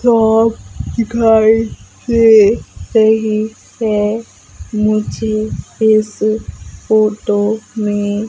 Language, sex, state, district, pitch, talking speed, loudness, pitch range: Hindi, female, Madhya Pradesh, Umaria, 220 Hz, 70 wpm, -14 LUFS, 215-225 Hz